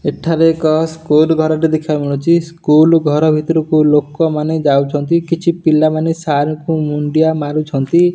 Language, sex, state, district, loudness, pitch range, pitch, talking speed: Odia, male, Odisha, Nuapada, -14 LUFS, 150-165 Hz, 155 Hz, 155 wpm